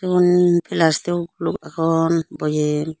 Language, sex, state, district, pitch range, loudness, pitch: Chakma, female, Tripura, Unakoti, 160-175 Hz, -19 LUFS, 165 Hz